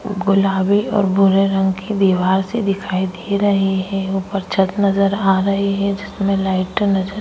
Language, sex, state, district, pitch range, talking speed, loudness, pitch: Hindi, female, Goa, North and South Goa, 190-200 Hz, 175 wpm, -17 LUFS, 195 Hz